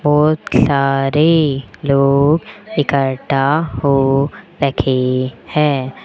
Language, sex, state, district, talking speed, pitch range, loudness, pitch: Hindi, female, Rajasthan, Jaipur, 70 wpm, 135-150 Hz, -15 LUFS, 140 Hz